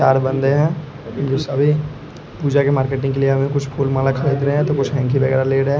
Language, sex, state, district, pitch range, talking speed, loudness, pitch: Hindi, male, Bihar, West Champaran, 135-145 Hz, 225 wpm, -18 LUFS, 140 Hz